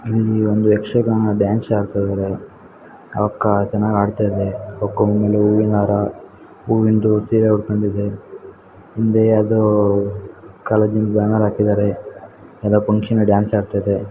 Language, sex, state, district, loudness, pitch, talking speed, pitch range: Kannada, female, Karnataka, Chamarajanagar, -17 LUFS, 105 Hz, 100 wpm, 100-110 Hz